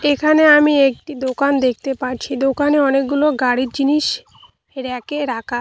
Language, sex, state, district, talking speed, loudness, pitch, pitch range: Bengali, female, West Bengal, Cooch Behar, 140 wpm, -16 LUFS, 275 Hz, 255-290 Hz